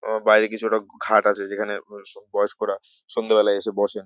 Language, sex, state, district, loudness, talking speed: Bengali, male, West Bengal, North 24 Parganas, -22 LUFS, 160 wpm